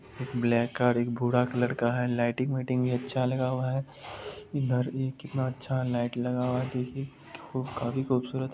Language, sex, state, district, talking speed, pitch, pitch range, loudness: Hindi, male, Bihar, Supaul, 155 wpm, 125 Hz, 125-130 Hz, -29 LUFS